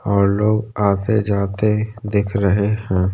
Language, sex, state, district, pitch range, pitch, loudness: Hindi, male, Uttarakhand, Tehri Garhwal, 100-105 Hz, 100 Hz, -18 LUFS